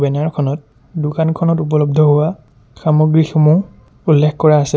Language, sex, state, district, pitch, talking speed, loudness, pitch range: Assamese, male, Assam, Sonitpur, 150 Hz, 100 wpm, -14 LUFS, 145-160 Hz